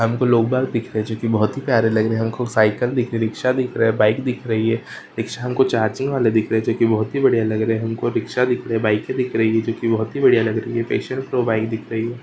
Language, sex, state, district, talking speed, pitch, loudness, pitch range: Hindi, male, Karnataka, Gulbarga, 175 wpm, 115 Hz, -20 LUFS, 110-125 Hz